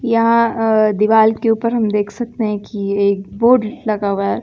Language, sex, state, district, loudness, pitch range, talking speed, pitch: Hindi, female, Bihar, West Champaran, -16 LUFS, 205-230 Hz, 190 wpm, 220 Hz